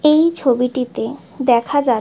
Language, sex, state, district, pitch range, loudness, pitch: Bengali, female, West Bengal, Jhargram, 245-300 Hz, -17 LUFS, 260 Hz